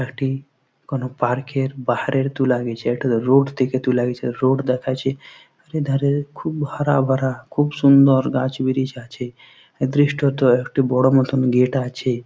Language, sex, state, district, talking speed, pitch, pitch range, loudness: Bengali, male, West Bengal, Jhargram, 145 wpm, 130 Hz, 125-135 Hz, -19 LUFS